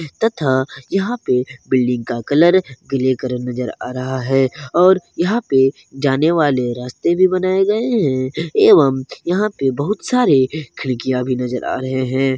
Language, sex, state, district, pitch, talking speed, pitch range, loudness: Hindi, male, Jharkhand, Garhwa, 135 Hz, 160 wpm, 130-175 Hz, -17 LUFS